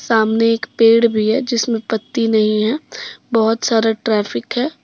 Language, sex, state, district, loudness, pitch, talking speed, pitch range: Hindi, female, Jharkhand, Deoghar, -16 LUFS, 225 Hz, 160 wpm, 220-235 Hz